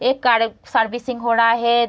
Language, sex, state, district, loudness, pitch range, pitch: Hindi, female, Bihar, Kishanganj, -18 LUFS, 230-240 Hz, 235 Hz